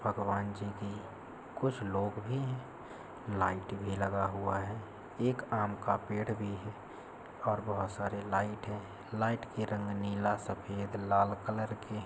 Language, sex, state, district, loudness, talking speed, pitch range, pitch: Hindi, male, Andhra Pradesh, Krishna, -36 LUFS, 160 wpm, 100-110 Hz, 105 Hz